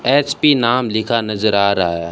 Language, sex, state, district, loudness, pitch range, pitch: Hindi, male, Rajasthan, Bikaner, -16 LUFS, 100-130 Hz, 110 Hz